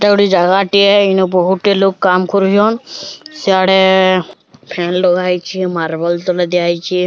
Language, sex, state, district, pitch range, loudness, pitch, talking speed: Odia, female, Odisha, Sambalpur, 180-195 Hz, -12 LUFS, 185 Hz, 125 wpm